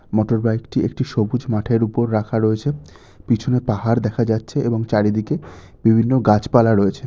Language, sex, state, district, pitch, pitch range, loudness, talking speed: Bengali, male, West Bengal, North 24 Parganas, 115 Hz, 110-120 Hz, -19 LUFS, 145 wpm